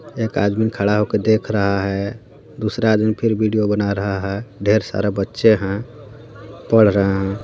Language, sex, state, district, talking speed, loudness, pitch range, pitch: Hindi, female, Jharkhand, Garhwa, 170 wpm, -18 LUFS, 100-110 Hz, 105 Hz